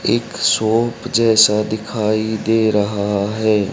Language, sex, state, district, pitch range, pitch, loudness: Hindi, male, Haryana, Rohtak, 105-110 Hz, 110 Hz, -16 LUFS